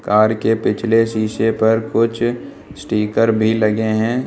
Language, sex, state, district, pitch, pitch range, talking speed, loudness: Hindi, male, Uttar Pradesh, Lucknow, 110 Hz, 110-115 Hz, 140 wpm, -17 LUFS